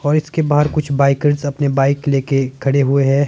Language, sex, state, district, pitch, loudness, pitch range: Hindi, male, Himachal Pradesh, Shimla, 140 Hz, -16 LUFS, 135-145 Hz